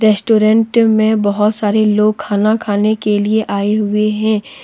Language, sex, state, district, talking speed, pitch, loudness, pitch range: Hindi, female, Jharkhand, Deoghar, 155 wpm, 215 Hz, -14 LUFS, 210-220 Hz